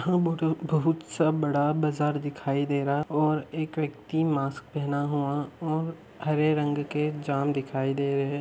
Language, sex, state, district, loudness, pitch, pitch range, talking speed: Hindi, male, Andhra Pradesh, Anantapur, -28 LUFS, 150 Hz, 145-155 Hz, 180 wpm